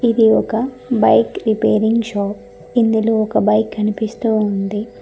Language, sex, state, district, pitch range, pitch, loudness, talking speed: Telugu, female, Telangana, Mahabubabad, 210-230 Hz, 220 Hz, -17 LUFS, 120 wpm